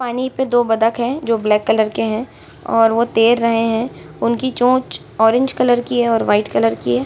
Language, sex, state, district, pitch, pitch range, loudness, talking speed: Hindi, female, Bihar, Saran, 230 Hz, 225-245 Hz, -16 LUFS, 210 wpm